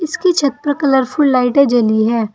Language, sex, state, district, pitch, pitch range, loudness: Hindi, female, Uttar Pradesh, Saharanpur, 275 Hz, 240-290 Hz, -14 LUFS